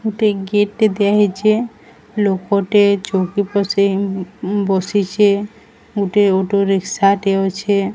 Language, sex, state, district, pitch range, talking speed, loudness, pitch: Odia, female, Odisha, Sambalpur, 195-205 Hz, 90 wpm, -16 LUFS, 200 Hz